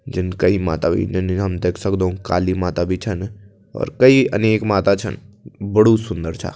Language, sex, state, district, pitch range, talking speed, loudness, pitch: Kumaoni, male, Uttarakhand, Tehri Garhwal, 90-105 Hz, 165 wpm, -18 LUFS, 95 Hz